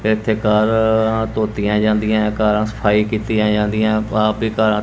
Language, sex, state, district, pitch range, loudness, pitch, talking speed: Punjabi, male, Punjab, Kapurthala, 105-110 Hz, -17 LUFS, 110 Hz, 160 wpm